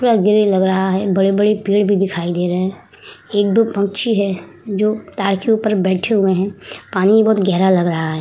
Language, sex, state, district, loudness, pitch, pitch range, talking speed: Hindi, female, Uttar Pradesh, Hamirpur, -16 LUFS, 200 Hz, 190-210 Hz, 205 wpm